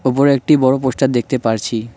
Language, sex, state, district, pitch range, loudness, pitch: Bengali, male, West Bengal, Cooch Behar, 120-135 Hz, -15 LUFS, 130 Hz